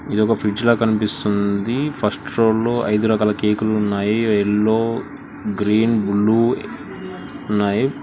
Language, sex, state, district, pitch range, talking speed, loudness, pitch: Telugu, male, Telangana, Hyderabad, 105-115 Hz, 110 wpm, -19 LUFS, 110 Hz